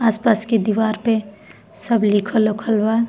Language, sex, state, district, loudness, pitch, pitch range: Bhojpuri, female, Bihar, East Champaran, -18 LUFS, 220 Hz, 210-225 Hz